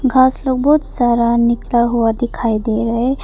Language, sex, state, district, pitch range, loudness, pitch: Hindi, female, Arunachal Pradesh, Papum Pare, 235-260 Hz, -15 LUFS, 240 Hz